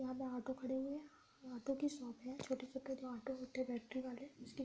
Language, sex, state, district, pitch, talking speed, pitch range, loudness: Hindi, female, Uttar Pradesh, Budaun, 260 Hz, 270 wpm, 255-265 Hz, -46 LUFS